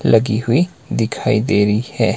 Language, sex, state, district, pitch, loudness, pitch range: Hindi, male, Himachal Pradesh, Shimla, 110 Hz, -17 LUFS, 110-120 Hz